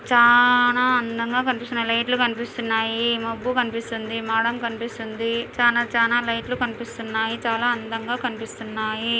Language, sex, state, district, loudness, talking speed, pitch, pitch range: Telugu, female, Andhra Pradesh, Anantapur, -22 LUFS, 115 wpm, 235 Hz, 225-245 Hz